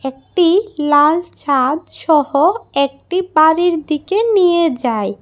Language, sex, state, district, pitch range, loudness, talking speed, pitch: Bengali, female, Tripura, West Tripura, 285-355 Hz, -15 LUFS, 105 wpm, 315 Hz